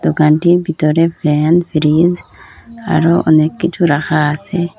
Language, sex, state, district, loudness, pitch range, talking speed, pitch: Bengali, female, Assam, Hailakandi, -13 LUFS, 155-175 Hz, 100 wpm, 165 Hz